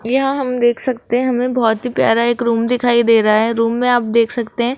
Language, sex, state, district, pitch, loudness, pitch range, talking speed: Hindi, female, Rajasthan, Jaipur, 240 Hz, -15 LUFS, 230-250 Hz, 265 wpm